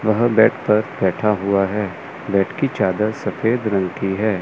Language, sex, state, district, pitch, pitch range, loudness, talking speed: Hindi, male, Chandigarh, Chandigarh, 105 Hz, 95-110 Hz, -19 LUFS, 175 wpm